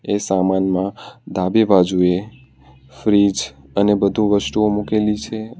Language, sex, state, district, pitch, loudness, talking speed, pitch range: Gujarati, male, Gujarat, Valsad, 100 Hz, -18 LUFS, 105 wpm, 95-105 Hz